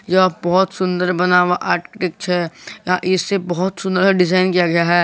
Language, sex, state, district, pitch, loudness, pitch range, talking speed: Hindi, male, Jharkhand, Garhwa, 180 Hz, -17 LUFS, 180-185 Hz, 155 wpm